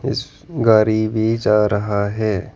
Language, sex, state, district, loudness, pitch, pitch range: Hindi, male, Arunachal Pradesh, Lower Dibang Valley, -17 LUFS, 110 Hz, 105-115 Hz